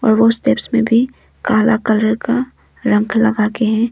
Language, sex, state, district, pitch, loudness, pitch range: Hindi, female, Arunachal Pradesh, Longding, 225 Hz, -15 LUFS, 220-235 Hz